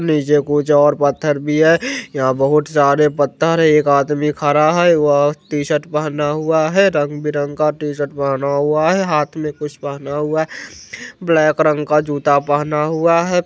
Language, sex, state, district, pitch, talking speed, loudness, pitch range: Bajjika, male, Bihar, Vaishali, 150 Hz, 175 wpm, -16 LUFS, 145-155 Hz